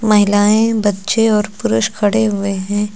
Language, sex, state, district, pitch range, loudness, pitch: Hindi, female, Uttar Pradesh, Lucknow, 205-215 Hz, -15 LUFS, 205 Hz